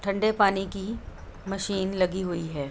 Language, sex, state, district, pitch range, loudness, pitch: Hindi, female, Uttar Pradesh, Budaun, 185-200 Hz, -27 LUFS, 195 Hz